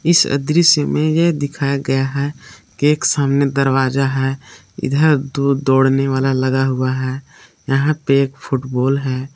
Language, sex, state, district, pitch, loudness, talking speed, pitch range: Hindi, male, Jharkhand, Palamu, 135 Hz, -16 LUFS, 155 wpm, 135-140 Hz